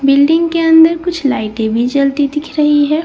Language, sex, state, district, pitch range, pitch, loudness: Hindi, female, Bihar, Katihar, 275-325 Hz, 295 Hz, -12 LUFS